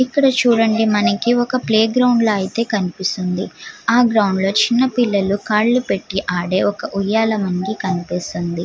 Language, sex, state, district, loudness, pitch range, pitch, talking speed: Telugu, female, Andhra Pradesh, Guntur, -17 LUFS, 190-240 Hz, 215 Hz, 140 wpm